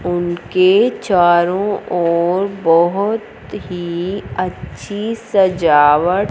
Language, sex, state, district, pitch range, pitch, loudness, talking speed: Hindi, female, Punjab, Fazilka, 175-200 Hz, 180 Hz, -15 LUFS, 65 wpm